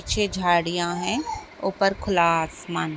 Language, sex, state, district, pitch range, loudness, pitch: Hindi, female, Bihar, Jahanabad, 170-205 Hz, -24 LUFS, 175 Hz